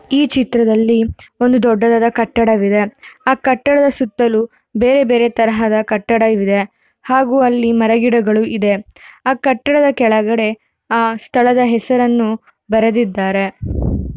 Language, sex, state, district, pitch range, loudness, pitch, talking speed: Kannada, female, Karnataka, Mysore, 220-250 Hz, -14 LUFS, 230 Hz, 100 wpm